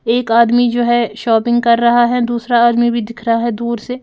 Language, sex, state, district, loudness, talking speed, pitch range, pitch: Hindi, female, Bihar, Patna, -14 LUFS, 240 wpm, 235-240 Hz, 235 Hz